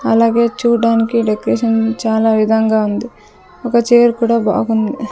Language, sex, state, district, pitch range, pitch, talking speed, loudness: Telugu, female, Andhra Pradesh, Sri Satya Sai, 220-235 Hz, 230 Hz, 105 wpm, -14 LUFS